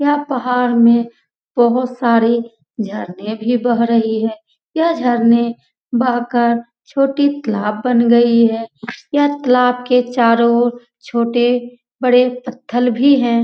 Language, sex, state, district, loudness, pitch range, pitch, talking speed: Hindi, female, Bihar, Lakhisarai, -15 LUFS, 235-250 Hz, 240 Hz, 130 wpm